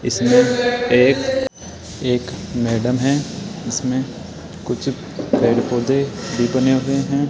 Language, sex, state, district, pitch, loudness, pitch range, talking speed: Hindi, male, Rajasthan, Jaipur, 130 Hz, -19 LUFS, 120-140 Hz, 105 wpm